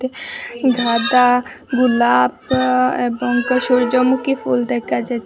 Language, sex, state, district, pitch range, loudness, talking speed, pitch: Bengali, female, Assam, Hailakandi, 240-255 Hz, -17 LUFS, 105 wpm, 250 Hz